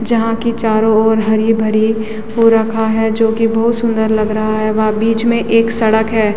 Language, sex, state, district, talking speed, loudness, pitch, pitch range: Hindi, female, Uttarakhand, Tehri Garhwal, 200 wpm, -14 LUFS, 220 Hz, 220-225 Hz